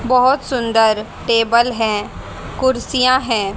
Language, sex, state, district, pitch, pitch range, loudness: Hindi, female, Haryana, Rohtak, 235 Hz, 225-255 Hz, -16 LUFS